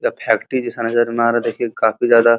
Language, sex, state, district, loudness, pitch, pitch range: Hindi, male, Uttar Pradesh, Muzaffarnagar, -17 LUFS, 115 Hz, 115-120 Hz